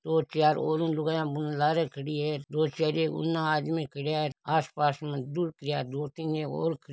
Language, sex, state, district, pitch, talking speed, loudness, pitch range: Marwari, male, Rajasthan, Nagaur, 155 Hz, 190 wpm, -29 LUFS, 150-160 Hz